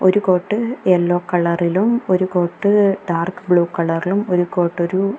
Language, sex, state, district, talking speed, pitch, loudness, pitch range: Malayalam, female, Kerala, Kasaragod, 150 wpm, 180 Hz, -17 LUFS, 175-195 Hz